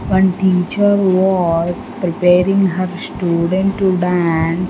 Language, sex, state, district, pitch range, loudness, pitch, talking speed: English, female, Andhra Pradesh, Sri Satya Sai, 175-190 Hz, -15 LUFS, 185 Hz, 100 wpm